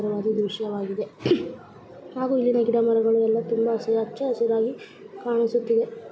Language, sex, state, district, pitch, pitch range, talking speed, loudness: Kannada, female, Karnataka, Shimoga, 230 Hz, 225-240 Hz, 130 wpm, -24 LUFS